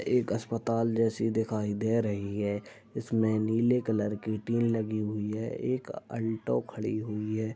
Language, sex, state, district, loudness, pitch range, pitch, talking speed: Hindi, male, Uttar Pradesh, Ghazipur, -30 LUFS, 105-115 Hz, 110 Hz, 160 wpm